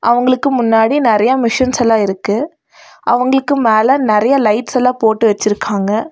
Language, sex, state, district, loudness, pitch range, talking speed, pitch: Tamil, female, Tamil Nadu, Nilgiris, -13 LUFS, 215-255 Hz, 125 wpm, 235 Hz